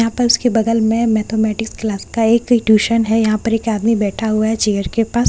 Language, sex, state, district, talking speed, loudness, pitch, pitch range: Hindi, female, Bihar, Katihar, 270 wpm, -16 LUFS, 225 Hz, 215-230 Hz